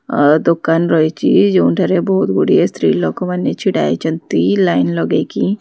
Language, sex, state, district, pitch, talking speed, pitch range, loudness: Odia, female, Odisha, Khordha, 170 Hz, 130 wpm, 155-185 Hz, -14 LUFS